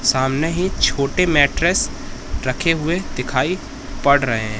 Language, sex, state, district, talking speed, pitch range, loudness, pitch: Hindi, male, Madhya Pradesh, Katni, 130 wpm, 130-165 Hz, -18 LUFS, 140 Hz